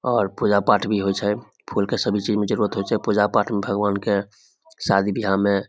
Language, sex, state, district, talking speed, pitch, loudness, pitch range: Maithili, male, Bihar, Samastipur, 200 wpm, 100 Hz, -21 LUFS, 100-105 Hz